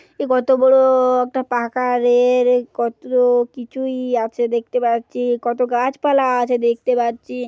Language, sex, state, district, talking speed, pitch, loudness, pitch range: Bengali, female, West Bengal, Paschim Medinipur, 120 wpm, 245 Hz, -18 LUFS, 240-255 Hz